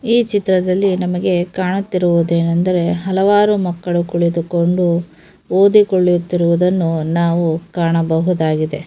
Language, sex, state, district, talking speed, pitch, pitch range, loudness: Kannada, female, Karnataka, Dharwad, 75 wpm, 175 Hz, 170-185 Hz, -15 LUFS